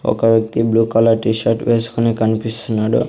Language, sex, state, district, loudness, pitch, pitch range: Telugu, male, Andhra Pradesh, Sri Satya Sai, -16 LUFS, 115 Hz, 110-115 Hz